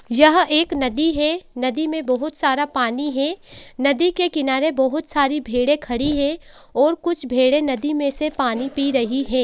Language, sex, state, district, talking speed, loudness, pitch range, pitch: Hindi, female, Uttarakhand, Uttarkashi, 180 wpm, -19 LUFS, 265-305 Hz, 285 Hz